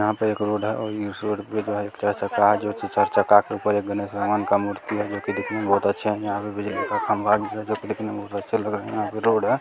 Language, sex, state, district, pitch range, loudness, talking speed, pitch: Hindi, male, Bihar, Jamui, 100-105 Hz, -24 LUFS, 335 wpm, 105 Hz